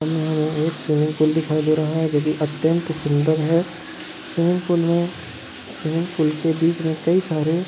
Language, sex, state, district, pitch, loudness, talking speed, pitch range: Hindi, male, Goa, North and South Goa, 160 Hz, -21 LUFS, 180 wpm, 155-170 Hz